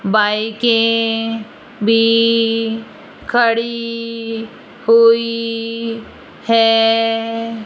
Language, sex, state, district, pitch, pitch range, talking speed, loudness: Hindi, female, Rajasthan, Jaipur, 230 Hz, 225-230 Hz, 40 wpm, -15 LUFS